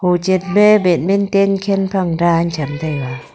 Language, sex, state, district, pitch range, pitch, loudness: Wancho, female, Arunachal Pradesh, Longding, 165-195 Hz, 185 Hz, -15 LUFS